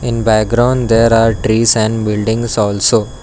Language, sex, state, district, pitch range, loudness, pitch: English, male, Karnataka, Bangalore, 110-115 Hz, -12 LUFS, 115 Hz